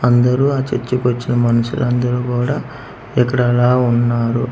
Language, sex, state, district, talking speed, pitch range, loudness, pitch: Telugu, male, Andhra Pradesh, Manyam, 145 wpm, 120-125 Hz, -16 LUFS, 125 Hz